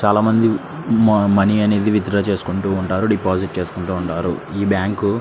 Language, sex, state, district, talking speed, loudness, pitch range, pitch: Telugu, male, Andhra Pradesh, Srikakulam, 150 wpm, -18 LUFS, 95-105 Hz, 100 Hz